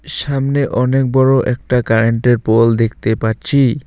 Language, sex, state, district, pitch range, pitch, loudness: Bengali, male, West Bengal, Alipurduar, 115-135 Hz, 125 Hz, -14 LUFS